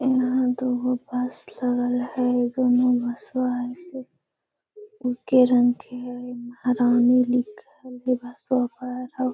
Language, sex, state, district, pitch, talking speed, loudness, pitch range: Magahi, female, Bihar, Gaya, 250 Hz, 135 wpm, -23 LUFS, 245-255 Hz